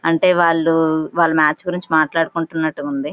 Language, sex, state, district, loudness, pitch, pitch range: Telugu, female, Andhra Pradesh, Visakhapatnam, -17 LUFS, 165 Hz, 155-170 Hz